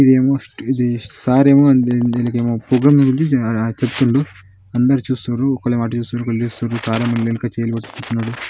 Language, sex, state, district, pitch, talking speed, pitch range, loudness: Telugu, male, Telangana, Nalgonda, 120 Hz, 135 wpm, 115-130 Hz, -17 LUFS